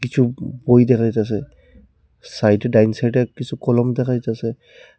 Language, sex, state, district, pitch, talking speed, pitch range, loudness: Bengali, male, Tripura, Unakoti, 120 Hz, 130 wpm, 110-125 Hz, -18 LUFS